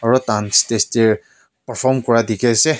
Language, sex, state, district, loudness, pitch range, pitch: Nagamese, male, Nagaland, Kohima, -16 LUFS, 110-130 Hz, 115 Hz